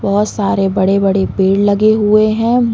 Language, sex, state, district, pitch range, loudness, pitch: Hindi, female, Uttar Pradesh, Deoria, 195-215 Hz, -13 LUFS, 205 Hz